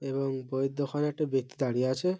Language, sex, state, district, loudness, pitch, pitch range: Bengali, male, West Bengal, Malda, -31 LUFS, 135 Hz, 130-145 Hz